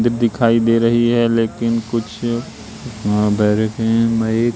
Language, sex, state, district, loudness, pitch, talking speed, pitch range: Hindi, male, Madhya Pradesh, Katni, -17 LUFS, 115 Hz, 90 wpm, 110-120 Hz